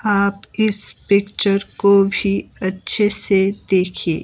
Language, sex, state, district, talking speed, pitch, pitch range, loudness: Hindi, male, Himachal Pradesh, Shimla, 115 wpm, 200 Hz, 195-205 Hz, -17 LUFS